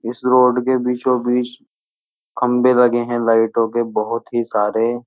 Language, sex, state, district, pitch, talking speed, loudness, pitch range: Hindi, male, Uttar Pradesh, Jyotiba Phule Nagar, 120 Hz, 155 wpm, -17 LUFS, 115-125 Hz